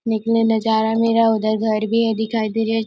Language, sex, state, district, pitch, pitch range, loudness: Hindi, female, Chhattisgarh, Korba, 225 Hz, 220-225 Hz, -18 LUFS